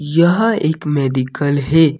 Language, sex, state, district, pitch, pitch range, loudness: Hindi, male, Jharkhand, Deoghar, 150 Hz, 145-165 Hz, -15 LUFS